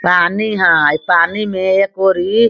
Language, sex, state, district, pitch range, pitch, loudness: Hindi, female, Bihar, Sitamarhi, 175-205 Hz, 190 Hz, -13 LUFS